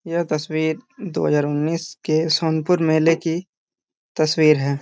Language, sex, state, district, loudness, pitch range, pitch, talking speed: Hindi, male, Jharkhand, Jamtara, -20 LUFS, 155-165 Hz, 160 Hz, 125 wpm